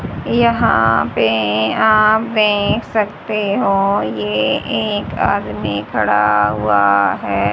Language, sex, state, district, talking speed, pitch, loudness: Hindi, female, Haryana, Rohtak, 95 wpm, 110 Hz, -15 LUFS